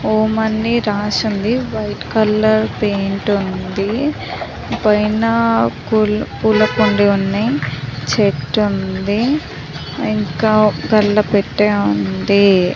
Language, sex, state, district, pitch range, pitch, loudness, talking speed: Telugu, female, Telangana, Nalgonda, 195-215 Hz, 210 Hz, -16 LUFS, 80 wpm